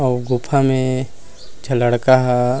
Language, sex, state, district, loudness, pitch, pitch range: Chhattisgarhi, male, Chhattisgarh, Rajnandgaon, -17 LUFS, 125 Hz, 120-130 Hz